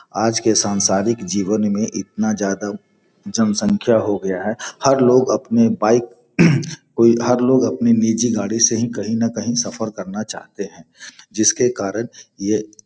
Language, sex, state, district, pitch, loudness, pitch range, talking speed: Hindi, male, Bihar, Gopalganj, 115 Hz, -18 LUFS, 105-125 Hz, 160 wpm